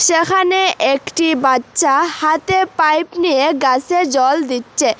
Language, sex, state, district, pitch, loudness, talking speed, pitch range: Bengali, female, Assam, Hailakandi, 320 Hz, -15 LUFS, 110 wpm, 275-355 Hz